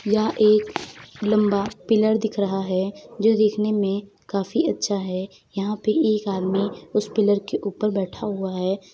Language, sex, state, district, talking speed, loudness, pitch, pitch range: Hindi, female, Uttar Pradesh, Varanasi, 160 wpm, -23 LUFS, 205 Hz, 195-215 Hz